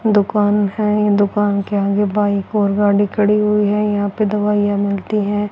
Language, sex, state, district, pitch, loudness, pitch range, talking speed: Hindi, female, Haryana, Rohtak, 205 Hz, -16 LUFS, 205-210 Hz, 175 wpm